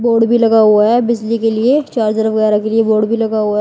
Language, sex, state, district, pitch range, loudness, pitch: Hindi, female, Uttar Pradesh, Lalitpur, 215-230 Hz, -13 LUFS, 225 Hz